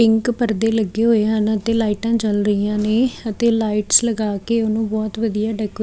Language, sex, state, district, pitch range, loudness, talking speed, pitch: Punjabi, female, Chandigarh, Chandigarh, 215-230 Hz, -18 LUFS, 195 wpm, 220 Hz